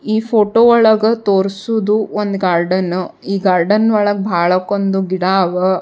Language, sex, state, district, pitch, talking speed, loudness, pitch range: Kannada, female, Karnataka, Bijapur, 200 Hz, 135 wpm, -14 LUFS, 185-215 Hz